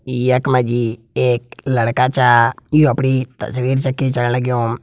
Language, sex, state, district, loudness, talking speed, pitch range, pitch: Garhwali, male, Uttarakhand, Tehri Garhwal, -16 LUFS, 135 wpm, 120-130 Hz, 125 Hz